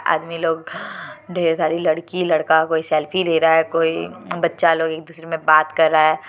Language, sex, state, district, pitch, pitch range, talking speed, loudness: Hindi, female, Jharkhand, Deoghar, 160 Hz, 160-165 Hz, 200 wpm, -18 LUFS